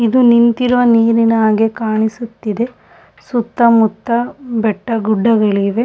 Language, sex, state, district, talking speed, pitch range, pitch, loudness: Kannada, female, Karnataka, Shimoga, 70 wpm, 220-235 Hz, 230 Hz, -14 LUFS